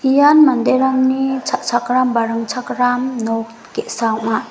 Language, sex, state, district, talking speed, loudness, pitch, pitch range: Garo, female, Meghalaya, West Garo Hills, 105 wpm, -16 LUFS, 245 Hz, 230-260 Hz